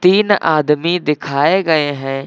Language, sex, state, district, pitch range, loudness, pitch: Hindi, male, Uttar Pradesh, Lucknow, 140-180 Hz, -15 LUFS, 150 Hz